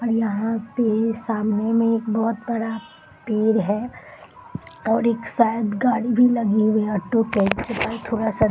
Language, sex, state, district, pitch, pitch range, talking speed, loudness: Hindi, female, Bihar, Gaya, 225 Hz, 215-230 Hz, 140 wpm, -21 LUFS